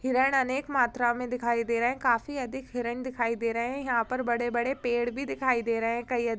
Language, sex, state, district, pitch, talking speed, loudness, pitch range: Hindi, female, Uttar Pradesh, Jyotiba Phule Nagar, 245 Hz, 245 wpm, -28 LUFS, 235-260 Hz